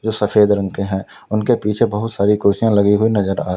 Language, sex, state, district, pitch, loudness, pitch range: Hindi, male, Uttar Pradesh, Lalitpur, 105 Hz, -16 LUFS, 100-110 Hz